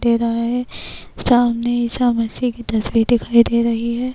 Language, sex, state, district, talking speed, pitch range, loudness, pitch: Urdu, female, Bihar, Kishanganj, 160 wpm, 235-240 Hz, -18 LUFS, 235 Hz